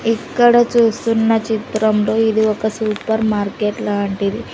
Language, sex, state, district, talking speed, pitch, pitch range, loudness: Telugu, female, Andhra Pradesh, Sri Satya Sai, 105 wpm, 220 Hz, 210-225 Hz, -16 LUFS